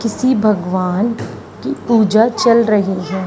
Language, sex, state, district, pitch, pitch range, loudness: Hindi, female, Haryana, Charkhi Dadri, 215 Hz, 190-230 Hz, -15 LUFS